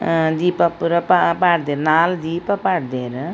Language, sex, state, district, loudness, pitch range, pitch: Tulu, female, Karnataka, Dakshina Kannada, -18 LUFS, 155-175 Hz, 170 Hz